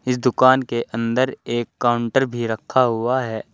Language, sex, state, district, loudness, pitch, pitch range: Hindi, male, Uttar Pradesh, Saharanpur, -20 LUFS, 120 Hz, 115-130 Hz